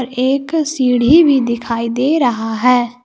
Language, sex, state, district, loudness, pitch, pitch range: Hindi, female, Jharkhand, Palamu, -14 LUFS, 250 Hz, 235-275 Hz